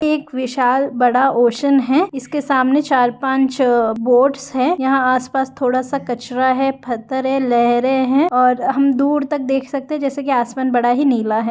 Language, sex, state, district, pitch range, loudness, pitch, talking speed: Hindi, female, Jharkhand, Sahebganj, 250-275 Hz, -16 LUFS, 265 Hz, 190 wpm